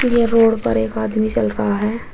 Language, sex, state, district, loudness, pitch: Hindi, female, Uttar Pradesh, Shamli, -17 LUFS, 205 Hz